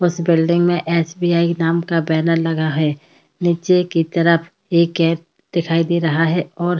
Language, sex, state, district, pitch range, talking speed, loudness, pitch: Hindi, female, Uttar Pradesh, Hamirpur, 165-170 Hz, 185 wpm, -17 LUFS, 170 Hz